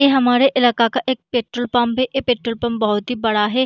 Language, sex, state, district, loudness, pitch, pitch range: Hindi, female, Chhattisgarh, Balrampur, -18 LUFS, 245 Hz, 230-255 Hz